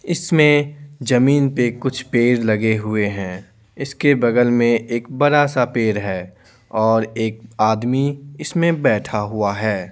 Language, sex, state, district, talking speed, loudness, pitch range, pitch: Hindi, male, Bihar, Patna, 135 wpm, -18 LUFS, 110-140 Hz, 120 Hz